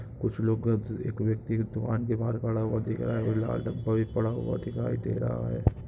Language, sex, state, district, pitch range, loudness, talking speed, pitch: Hindi, male, Goa, North and South Goa, 110-115 Hz, -30 LUFS, 235 wpm, 110 Hz